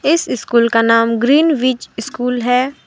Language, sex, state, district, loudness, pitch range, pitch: Hindi, female, Jharkhand, Deoghar, -14 LUFS, 230-275 Hz, 250 Hz